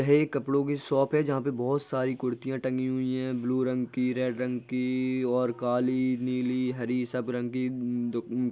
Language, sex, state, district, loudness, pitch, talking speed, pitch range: Hindi, male, Bihar, Jahanabad, -29 LUFS, 125 Hz, 190 wpm, 125-130 Hz